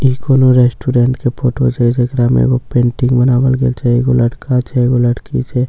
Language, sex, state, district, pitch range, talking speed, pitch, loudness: Maithili, male, Bihar, Katihar, 120-130 Hz, 200 wpm, 125 Hz, -13 LUFS